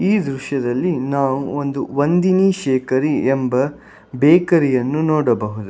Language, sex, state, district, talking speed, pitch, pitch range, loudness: Kannada, male, Karnataka, Bangalore, 95 wpm, 140 Hz, 130-155 Hz, -17 LUFS